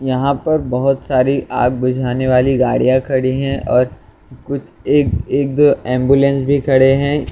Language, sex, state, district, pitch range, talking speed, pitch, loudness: Hindi, male, Maharashtra, Mumbai Suburban, 130-140 Hz, 170 wpm, 135 Hz, -15 LUFS